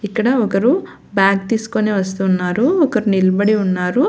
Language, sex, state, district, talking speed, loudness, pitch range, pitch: Telugu, female, Telangana, Hyderabad, 115 wpm, -16 LUFS, 195-225 Hz, 210 Hz